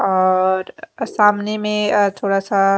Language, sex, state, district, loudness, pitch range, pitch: Hindi, female, Maharashtra, Mumbai Suburban, -17 LUFS, 195-210 Hz, 205 Hz